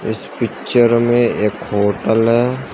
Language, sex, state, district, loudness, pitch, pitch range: Hindi, male, Uttar Pradesh, Shamli, -16 LUFS, 120 Hz, 110-120 Hz